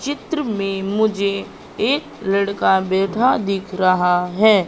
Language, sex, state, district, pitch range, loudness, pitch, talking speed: Hindi, female, Madhya Pradesh, Katni, 190-215 Hz, -19 LUFS, 195 Hz, 115 wpm